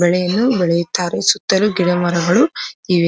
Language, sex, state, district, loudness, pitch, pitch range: Kannada, female, Karnataka, Dharwad, -16 LUFS, 180 Hz, 175-210 Hz